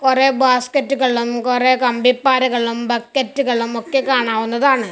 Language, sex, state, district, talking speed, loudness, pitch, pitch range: Malayalam, male, Kerala, Kasaragod, 85 wpm, -16 LUFS, 250 Hz, 235-265 Hz